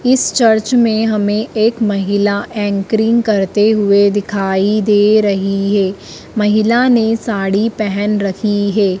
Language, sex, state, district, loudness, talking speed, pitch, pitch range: Hindi, female, Madhya Pradesh, Dhar, -14 LUFS, 125 wpm, 210 Hz, 200-220 Hz